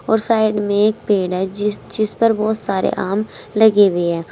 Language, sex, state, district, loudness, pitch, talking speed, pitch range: Hindi, female, Uttar Pradesh, Saharanpur, -17 LUFS, 210 Hz, 180 wpm, 195-215 Hz